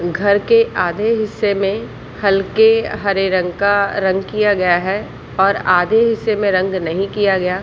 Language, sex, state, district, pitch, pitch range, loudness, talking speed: Hindi, female, Jharkhand, Sahebganj, 200 Hz, 185-210 Hz, -16 LUFS, 165 wpm